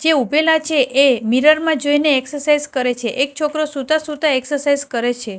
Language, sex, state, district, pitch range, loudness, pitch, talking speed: Gujarati, female, Gujarat, Gandhinagar, 260-305 Hz, -16 LUFS, 290 Hz, 190 wpm